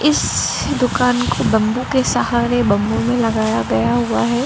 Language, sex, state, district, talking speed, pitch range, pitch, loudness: Hindi, female, Arunachal Pradesh, Lower Dibang Valley, 160 wpm, 205-245 Hz, 235 Hz, -17 LUFS